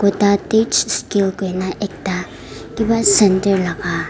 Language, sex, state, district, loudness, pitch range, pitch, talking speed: Nagamese, female, Nagaland, Dimapur, -17 LUFS, 185-205 Hz, 200 Hz, 115 wpm